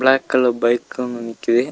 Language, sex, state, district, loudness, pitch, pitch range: Tamil, male, Tamil Nadu, Nilgiris, -19 LUFS, 125 Hz, 120-130 Hz